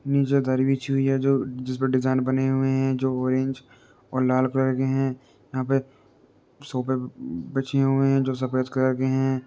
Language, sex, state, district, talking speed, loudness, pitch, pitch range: Hindi, male, Uttar Pradesh, Jalaun, 185 wpm, -24 LUFS, 130 Hz, 130-135 Hz